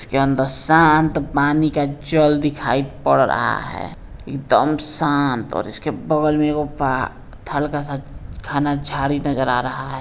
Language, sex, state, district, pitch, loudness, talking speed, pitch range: Hindi, male, Bihar, Saran, 145 Hz, -19 LUFS, 170 wpm, 135-150 Hz